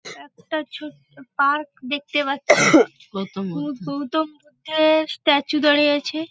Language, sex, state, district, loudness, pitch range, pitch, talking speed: Bengali, female, West Bengal, Paschim Medinipur, -20 LUFS, 275-310 Hz, 290 Hz, 95 wpm